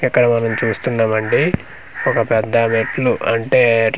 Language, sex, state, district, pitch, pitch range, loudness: Telugu, male, Andhra Pradesh, Manyam, 115 Hz, 115-120 Hz, -16 LUFS